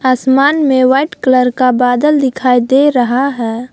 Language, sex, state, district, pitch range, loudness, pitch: Hindi, female, Jharkhand, Palamu, 250-275 Hz, -11 LUFS, 260 Hz